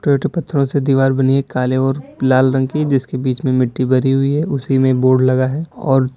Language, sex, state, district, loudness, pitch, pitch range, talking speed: Hindi, male, Uttar Pradesh, Lalitpur, -16 LUFS, 135 Hz, 130-140 Hz, 235 wpm